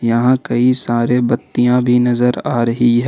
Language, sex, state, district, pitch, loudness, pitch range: Hindi, male, Jharkhand, Ranchi, 120 Hz, -15 LUFS, 120-125 Hz